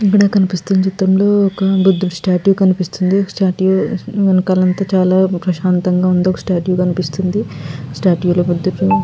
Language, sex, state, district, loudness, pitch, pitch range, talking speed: Telugu, female, Andhra Pradesh, Guntur, -14 LUFS, 185 Hz, 180-195 Hz, 140 wpm